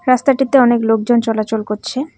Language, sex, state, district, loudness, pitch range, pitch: Bengali, female, West Bengal, Cooch Behar, -15 LUFS, 220-260 Hz, 240 Hz